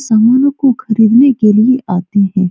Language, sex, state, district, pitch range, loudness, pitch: Hindi, female, Bihar, Supaul, 210-265 Hz, -10 LUFS, 225 Hz